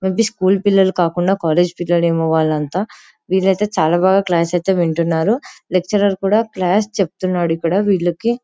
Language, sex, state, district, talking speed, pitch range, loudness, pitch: Telugu, female, Telangana, Karimnagar, 140 wpm, 170-200 Hz, -16 LUFS, 185 Hz